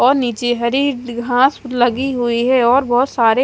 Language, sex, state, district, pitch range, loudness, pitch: Hindi, female, Haryana, Charkhi Dadri, 240-260 Hz, -16 LUFS, 245 Hz